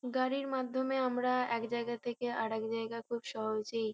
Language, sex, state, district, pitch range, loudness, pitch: Bengali, female, West Bengal, Kolkata, 230-255 Hz, -35 LUFS, 240 Hz